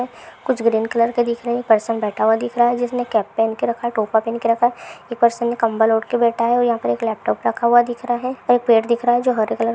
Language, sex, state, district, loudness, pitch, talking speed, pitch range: Hindi, female, Andhra Pradesh, Krishna, -18 LUFS, 235 Hz, 310 wpm, 225-240 Hz